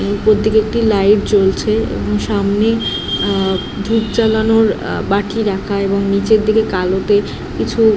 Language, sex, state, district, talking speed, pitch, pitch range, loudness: Bengali, female, West Bengal, Jhargram, 135 wpm, 205 Hz, 195-220 Hz, -15 LUFS